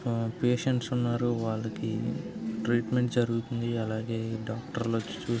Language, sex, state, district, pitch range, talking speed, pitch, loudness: Telugu, male, Andhra Pradesh, Visakhapatnam, 115-120 Hz, 110 wpm, 115 Hz, -30 LUFS